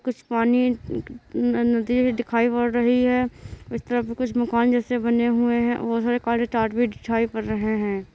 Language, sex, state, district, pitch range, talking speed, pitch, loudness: Hindi, male, Bihar, Purnia, 230-245 Hz, 185 wpm, 240 Hz, -22 LUFS